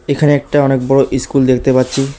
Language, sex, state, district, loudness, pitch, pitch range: Bengali, male, West Bengal, Alipurduar, -13 LUFS, 135 Hz, 130-140 Hz